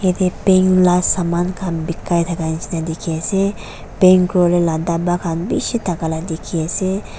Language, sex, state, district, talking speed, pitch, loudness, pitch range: Nagamese, female, Nagaland, Dimapur, 135 wpm, 175 Hz, -17 LUFS, 165-185 Hz